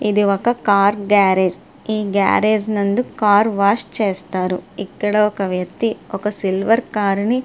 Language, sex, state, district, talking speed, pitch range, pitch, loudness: Telugu, female, Andhra Pradesh, Srikakulam, 135 wpm, 195-215 Hz, 205 Hz, -17 LUFS